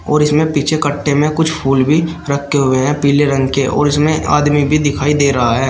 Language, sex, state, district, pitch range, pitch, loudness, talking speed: Hindi, male, Uttar Pradesh, Shamli, 140-150 Hz, 145 Hz, -14 LUFS, 230 wpm